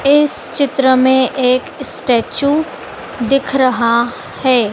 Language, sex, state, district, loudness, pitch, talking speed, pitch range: Hindi, female, Madhya Pradesh, Dhar, -14 LUFS, 260 Hz, 100 wpm, 245-275 Hz